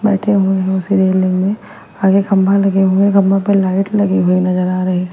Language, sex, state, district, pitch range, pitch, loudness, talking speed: Hindi, female, Bihar, West Champaran, 185-200 Hz, 195 Hz, -14 LUFS, 220 wpm